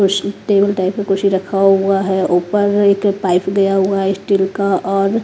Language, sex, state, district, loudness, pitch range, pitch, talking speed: Hindi, female, Punjab, Kapurthala, -15 LUFS, 190-200 Hz, 195 Hz, 205 wpm